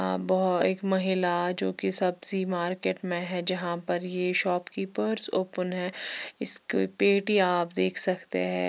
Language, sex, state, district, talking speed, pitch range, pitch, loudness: Hindi, female, Chandigarh, Chandigarh, 150 wpm, 175-185 Hz, 180 Hz, -22 LUFS